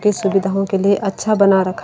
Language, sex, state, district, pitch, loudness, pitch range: Hindi, male, Delhi, New Delhi, 195 Hz, -16 LUFS, 195-200 Hz